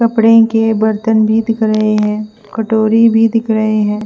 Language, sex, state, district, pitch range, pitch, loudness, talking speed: Hindi, female, Punjab, Fazilka, 215-225 Hz, 220 Hz, -12 LUFS, 180 wpm